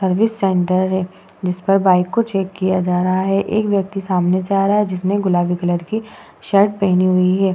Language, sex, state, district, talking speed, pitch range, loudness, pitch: Hindi, female, Bihar, Vaishali, 205 wpm, 185-200 Hz, -17 LUFS, 190 Hz